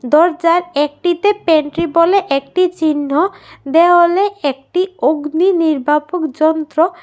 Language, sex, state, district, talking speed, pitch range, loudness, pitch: Bengali, female, Tripura, West Tripura, 95 wpm, 300-360 Hz, -14 LUFS, 330 Hz